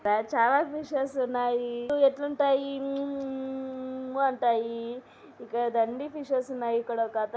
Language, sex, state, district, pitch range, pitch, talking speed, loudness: Telugu, female, Andhra Pradesh, Anantapur, 235-275 Hz, 260 Hz, 145 wpm, -29 LUFS